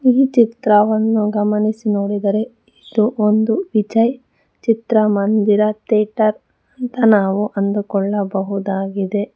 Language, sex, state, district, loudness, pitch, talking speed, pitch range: Kannada, female, Karnataka, Bangalore, -17 LUFS, 215 Hz, 75 wpm, 205-225 Hz